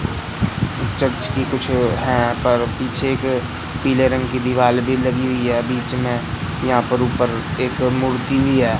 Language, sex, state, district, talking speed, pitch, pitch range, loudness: Hindi, male, Madhya Pradesh, Katni, 165 wpm, 125 Hz, 120-130 Hz, -19 LUFS